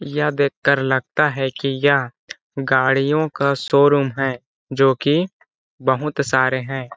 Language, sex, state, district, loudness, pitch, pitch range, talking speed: Hindi, male, Chhattisgarh, Balrampur, -18 LUFS, 135 Hz, 130-145 Hz, 145 wpm